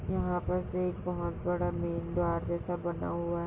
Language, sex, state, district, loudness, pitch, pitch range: Hindi, female, Uttar Pradesh, Budaun, -33 LUFS, 90 Hz, 85-95 Hz